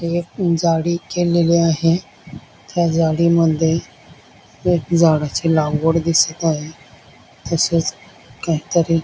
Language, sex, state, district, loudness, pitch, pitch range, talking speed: Marathi, male, Maharashtra, Dhule, -18 LUFS, 165 Hz, 155-170 Hz, 95 wpm